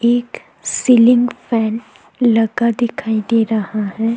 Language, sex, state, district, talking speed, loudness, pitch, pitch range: Hindi, female, Chhattisgarh, Kabirdham, 115 wpm, -16 LUFS, 230 Hz, 220-240 Hz